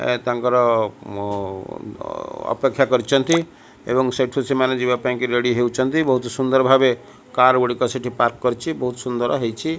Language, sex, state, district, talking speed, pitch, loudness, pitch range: Odia, male, Odisha, Malkangiri, 130 wpm, 125 Hz, -20 LUFS, 120-130 Hz